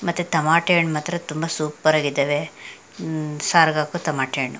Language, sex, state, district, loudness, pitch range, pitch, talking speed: Kannada, female, Karnataka, Mysore, -21 LUFS, 150-170 Hz, 155 Hz, 145 wpm